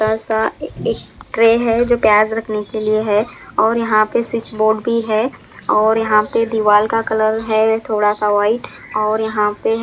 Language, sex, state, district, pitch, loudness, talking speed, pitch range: Hindi, male, Punjab, Fazilka, 220 Hz, -16 LUFS, 175 wpm, 215-225 Hz